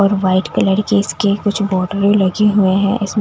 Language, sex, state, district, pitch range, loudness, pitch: Hindi, female, Delhi, New Delhi, 190-205 Hz, -15 LUFS, 200 Hz